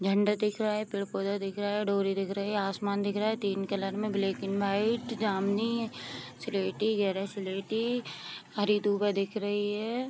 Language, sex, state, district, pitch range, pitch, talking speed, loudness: Hindi, female, Bihar, Vaishali, 195-210 Hz, 200 Hz, 185 wpm, -31 LUFS